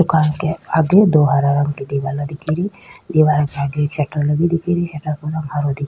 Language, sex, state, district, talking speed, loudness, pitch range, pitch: Rajasthani, female, Rajasthan, Nagaur, 245 wpm, -18 LUFS, 145-160 Hz, 150 Hz